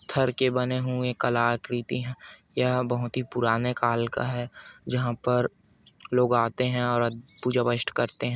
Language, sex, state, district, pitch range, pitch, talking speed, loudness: Hindi, male, Chhattisgarh, Kabirdham, 120-125 Hz, 125 Hz, 165 wpm, -26 LUFS